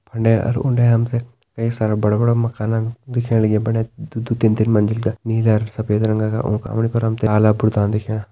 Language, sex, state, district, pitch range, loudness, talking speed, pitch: Hindi, male, Uttarakhand, Tehri Garhwal, 110-115 Hz, -18 LUFS, 225 wpm, 115 Hz